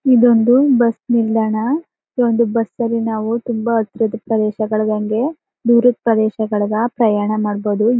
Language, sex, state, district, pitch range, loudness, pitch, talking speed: Kannada, female, Karnataka, Chamarajanagar, 215-240 Hz, -16 LUFS, 230 Hz, 105 wpm